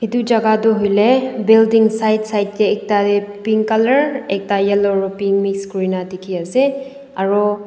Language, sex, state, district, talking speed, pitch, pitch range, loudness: Nagamese, female, Nagaland, Dimapur, 155 wpm, 210 Hz, 200-225 Hz, -16 LUFS